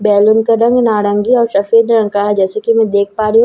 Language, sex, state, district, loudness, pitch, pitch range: Hindi, female, Bihar, Katihar, -12 LUFS, 215 Hz, 205-230 Hz